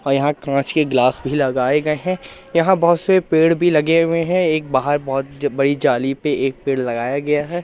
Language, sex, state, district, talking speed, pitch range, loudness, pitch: Hindi, male, Madhya Pradesh, Katni, 220 wpm, 135-165 Hz, -18 LUFS, 145 Hz